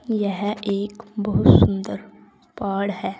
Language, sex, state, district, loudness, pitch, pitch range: Hindi, female, Uttar Pradesh, Saharanpur, -21 LUFS, 205 Hz, 200-210 Hz